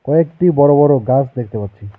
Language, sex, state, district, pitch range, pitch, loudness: Bengali, male, West Bengal, Alipurduar, 115-145 Hz, 135 Hz, -13 LUFS